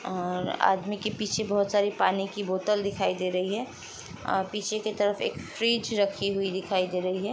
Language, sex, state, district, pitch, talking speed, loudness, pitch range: Hindi, female, Uttar Pradesh, Jalaun, 200 Hz, 205 wpm, -28 LUFS, 190-210 Hz